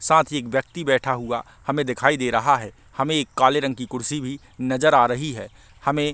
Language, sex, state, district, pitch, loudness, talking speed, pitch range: Hindi, male, Chhattisgarh, Bastar, 130 Hz, -22 LUFS, 215 wpm, 120-145 Hz